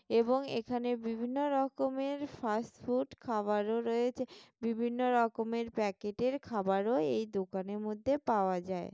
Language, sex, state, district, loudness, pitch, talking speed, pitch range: Bengali, female, West Bengal, Jalpaiguri, -34 LUFS, 230 Hz, 115 wpm, 210-250 Hz